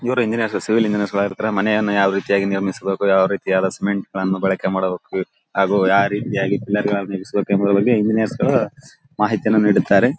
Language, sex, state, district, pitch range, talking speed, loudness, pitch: Kannada, male, Karnataka, Bellary, 95-105 Hz, 165 wpm, -19 LUFS, 100 Hz